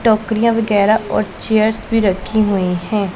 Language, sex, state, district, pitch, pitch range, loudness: Hindi, female, Punjab, Pathankot, 215 Hz, 200-220 Hz, -16 LUFS